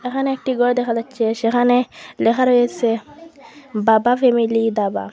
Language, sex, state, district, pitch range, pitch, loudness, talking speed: Bengali, female, Assam, Hailakandi, 225-255 Hz, 245 Hz, -18 LUFS, 130 wpm